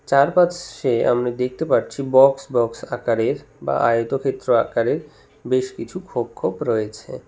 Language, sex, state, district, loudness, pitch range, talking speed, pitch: Bengali, male, West Bengal, Cooch Behar, -20 LUFS, 120-135 Hz, 125 wpm, 130 Hz